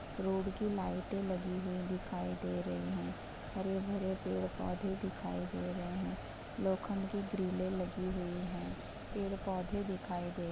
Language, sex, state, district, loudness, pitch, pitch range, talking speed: Hindi, female, Uttar Pradesh, Ghazipur, -39 LUFS, 185 Hz, 175-195 Hz, 145 wpm